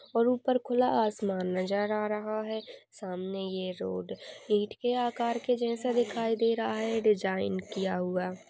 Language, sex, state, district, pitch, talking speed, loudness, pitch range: Hindi, female, Maharashtra, Sindhudurg, 215 Hz, 170 wpm, -30 LUFS, 190-240 Hz